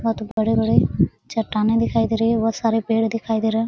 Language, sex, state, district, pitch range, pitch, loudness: Hindi, female, Bihar, Araria, 220-225 Hz, 225 Hz, -20 LUFS